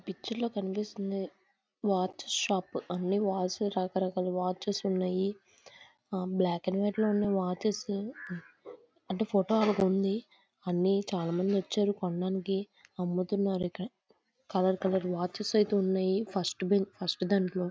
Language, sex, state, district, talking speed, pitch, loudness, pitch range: Telugu, female, Andhra Pradesh, Visakhapatnam, 125 wpm, 195 Hz, -31 LUFS, 185-205 Hz